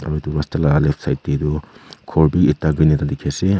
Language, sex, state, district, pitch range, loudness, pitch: Nagamese, female, Nagaland, Kohima, 75-80 Hz, -18 LUFS, 75 Hz